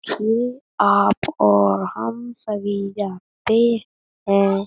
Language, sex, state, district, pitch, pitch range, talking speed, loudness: Hindi, female, Uttar Pradesh, Budaun, 205 Hz, 185-230 Hz, 90 wpm, -20 LUFS